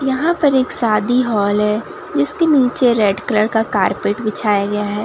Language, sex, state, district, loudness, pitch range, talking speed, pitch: Hindi, female, Bihar, Katihar, -16 LUFS, 210-265 Hz, 180 wpm, 220 Hz